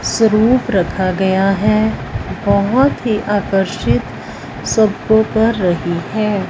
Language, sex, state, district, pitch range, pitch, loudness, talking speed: Hindi, female, Punjab, Fazilka, 195-220 Hz, 210 Hz, -15 LUFS, 100 wpm